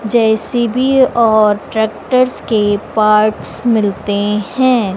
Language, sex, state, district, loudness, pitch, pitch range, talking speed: Hindi, female, Madhya Pradesh, Dhar, -13 LUFS, 220 Hz, 210-240 Hz, 85 wpm